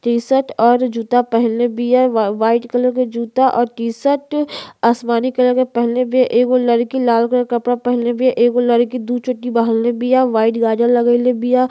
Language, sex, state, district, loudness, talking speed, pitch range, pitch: Bhojpuri, female, Uttar Pradesh, Gorakhpur, -16 LUFS, 175 wpm, 235-250 Hz, 240 Hz